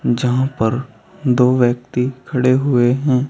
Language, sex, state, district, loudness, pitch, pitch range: Hindi, male, Uttar Pradesh, Saharanpur, -17 LUFS, 125 Hz, 120-130 Hz